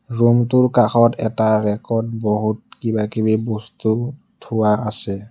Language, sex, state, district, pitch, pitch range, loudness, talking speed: Assamese, male, Assam, Kamrup Metropolitan, 110 Hz, 105-115 Hz, -18 LUFS, 135 wpm